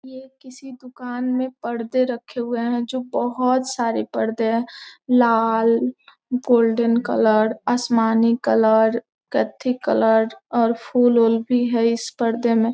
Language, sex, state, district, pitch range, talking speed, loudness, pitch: Hindi, female, Bihar, Gopalganj, 230-250 Hz, 130 wpm, -20 LUFS, 240 Hz